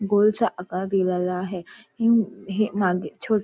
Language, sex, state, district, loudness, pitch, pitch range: Marathi, female, Maharashtra, Nagpur, -24 LUFS, 200 Hz, 180-215 Hz